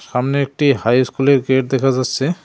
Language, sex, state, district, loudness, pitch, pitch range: Bengali, male, West Bengal, Cooch Behar, -16 LUFS, 135 Hz, 130-140 Hz